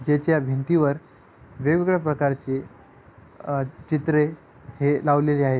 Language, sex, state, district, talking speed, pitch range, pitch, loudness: Marathi, male, Maharashtra, Pune, 95 wpm, 135-155 Hz, 145 Hz, -23 LUFS